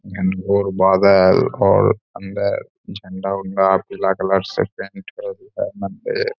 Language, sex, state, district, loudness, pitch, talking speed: Hindi, male, Bihar, Gaya, -18 LUFS, 95 Hz, 130 wpm